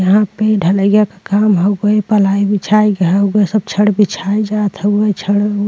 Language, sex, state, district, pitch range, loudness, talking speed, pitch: Bhojpuri, female, Uttar Pradesh, Deoria, 200-210 Hz, -13 LUFS, 190 wpm, 205 Hz